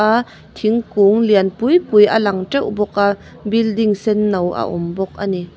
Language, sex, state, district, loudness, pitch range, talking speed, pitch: Mizo, female, Mizoram, Aizawl, -16 LUFS, 195-220 Hz, 170 wpm, 210 Hz